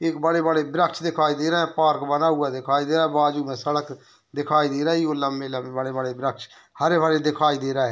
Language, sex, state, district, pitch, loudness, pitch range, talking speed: Hindi, male, Bihar, Muzaffarpur, 150 Hz, -22 LUFS, 135-160 Hz, 240 wpm